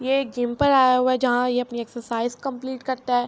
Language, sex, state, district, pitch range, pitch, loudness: Urdu, female, Andhra Pradesh, Anantapur, 245-260 Hz, 250 Hz, -22 LUFS